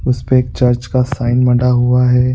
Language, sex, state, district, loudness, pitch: Hindi, male, Uttar Pradesh, Budaun, -13 LUFS, 125 Hz